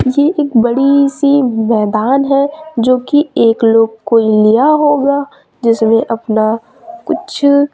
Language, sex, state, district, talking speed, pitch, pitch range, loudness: Hindi, female, Chhattisgarh, Raipur, 125 wpm, 265 Hz, 225-285 Hz, -12 LUFS